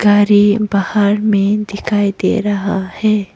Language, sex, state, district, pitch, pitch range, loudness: Hindi, female, Arunachal Pradesh, Papum Pare, 205 Hz, 200-210 Hz, -14 LUFS